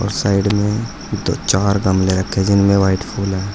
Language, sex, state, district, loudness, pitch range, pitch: Hindi, male, Uttar Pradesh, Saharanpur, -17 LUFS, 95-100 Hz, 100 Hz